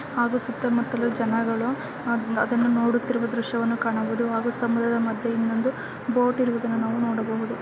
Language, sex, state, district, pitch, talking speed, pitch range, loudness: Kannada, female, Karnataka, Bellary, 235 Hz, 125 wpm, 230-240 Hz, -25 LUFS